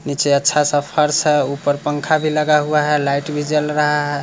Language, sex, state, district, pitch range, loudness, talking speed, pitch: Hindi, male, Bihar, Muzaffarpur, 145-150 Hz, -17 LUFS, 225 wpm, 150 Hz